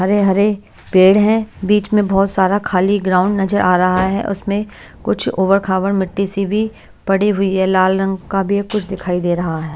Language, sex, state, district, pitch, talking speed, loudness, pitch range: Hindi, female, Bihar, Patna, 195 Hz, 205 wpm, -16 LUFS, 185-200 Hz